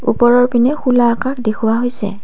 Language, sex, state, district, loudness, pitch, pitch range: Assamese, female, Assam, Kamrup Metropolitan, -14 LUFS, 240 Hz, 225-245 Hz